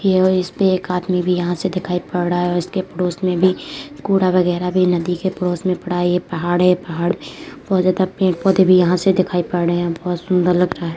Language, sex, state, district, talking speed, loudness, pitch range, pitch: Hindi, female, Uttar Pradesh, Deoria, 245 wpm, -18 LUFS, 175-185 Hz, 180 Hz